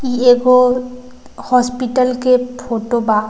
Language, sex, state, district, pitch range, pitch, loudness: Hindi, female, Bihar, East Champaran, 245-255 Hz, 250 Hz, -14 LUFS